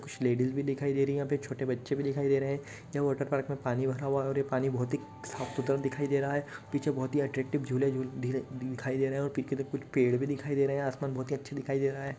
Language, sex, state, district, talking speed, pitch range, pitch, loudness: Hindi, male, Uttarakhand, Uttarkashi, 315 wpm, 130-140 Hz, 135 Hz, -32 LUFS